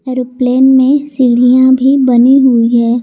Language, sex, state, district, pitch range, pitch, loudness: Hindi, female, Jharkhand, Garhwa, 245-265 Hz, 255 Hz, -9 LUFS